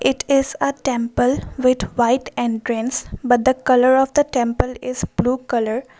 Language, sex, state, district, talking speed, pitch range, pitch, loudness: English, female, Assam, Kamrup Metropolitan, 160 wpm, 240-260 Hz, 255 Hz, -19 LUFS